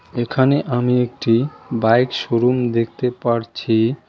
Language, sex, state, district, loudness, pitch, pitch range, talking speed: Bengali, male, West Bengal, Cooch Behar, -18 LUFS, 120 Hz, 115-125 Hz, 105 wpm